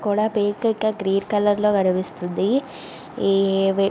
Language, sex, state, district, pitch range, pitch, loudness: Telugu, female, Andhra Pradesh, Visakhapatnam, 195-210 Hz, 205 Hz, -21 LUFS